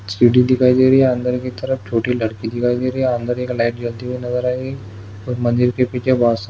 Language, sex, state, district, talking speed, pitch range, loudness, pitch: Hindi, male, Maharashtra, Solapur, 285 wpm, 120-125 Hz, -18 LUFS, 125 Hz